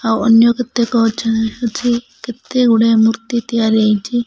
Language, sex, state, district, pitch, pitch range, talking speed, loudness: Odia, male, Odisha, Malkangiri, 230 Hz, 225-240 Hz, 140 wpm, -14 LUFS